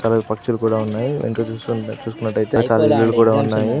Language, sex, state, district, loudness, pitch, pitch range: Telugu, male, Andhra Pradesh, Guntur, -18 LUFS, 115 Hz, 110-115 Hz